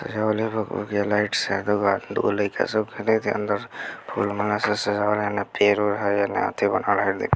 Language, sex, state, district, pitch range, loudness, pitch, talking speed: Bajjika, male, Bihar, Vaishali, 100-105 Hz, -23 LUFS, 105 Hz, 190 wpm